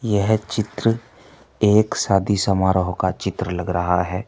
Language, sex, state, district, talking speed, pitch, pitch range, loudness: Hindi, male, Uttar Pradesh, Saharanpur, 140 wpm, 95 Hz, 90-110 Hz, -20 LUFS